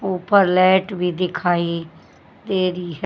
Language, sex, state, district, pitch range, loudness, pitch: Hindi, female, Haryana, Jhajjar, 175-190 Hz, -19 LUFS, 180 Hz